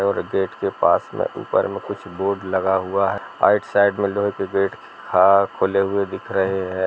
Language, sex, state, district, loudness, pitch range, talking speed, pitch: Hindi, male, Bihar, Sitamarhi, -20 LUFS, 95-100 Hz, 210 wpm, 100 Hz